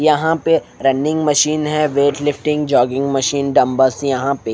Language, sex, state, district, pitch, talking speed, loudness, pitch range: Hindi, male, Haryana, Rohtak, 145 Hz, 170 wpm, -16 LUFS, 135-150 Hz